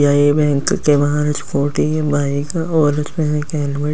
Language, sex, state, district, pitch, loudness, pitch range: Hindi, male, Delhi, New Delhi, 150 Hz, -17 LUFS, 145-150 Hz